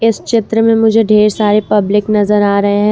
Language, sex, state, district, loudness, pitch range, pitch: Hindi, female, Jharkhand, Ranchi, -11 LUFS, 205-225 Hz, 210 Hz